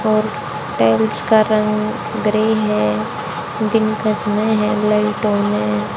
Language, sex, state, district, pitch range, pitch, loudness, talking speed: Hindi, female, Haryana, Jhajjar, 170-215 Hz, 210 Hz, -17 LUFS, 130 wpm